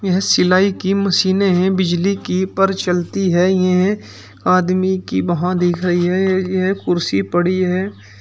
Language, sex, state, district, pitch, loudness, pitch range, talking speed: Hindi, male, Uttar Pradesh, Shamli, 185 Hz, -16 LUFS, 175-190 Hz, 175 wpm